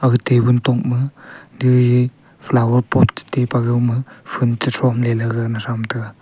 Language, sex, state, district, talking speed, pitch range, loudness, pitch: Wancho, male, Arunachal Pradesh, Longding, 185 wpm, 120-125 Hz, -17 LUFS, 125 Hz